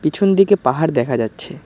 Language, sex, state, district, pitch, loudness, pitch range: Bengali, male, West Bengal, Cooch Behar, 155 Hz, -16 LUFS, 120-195 Hz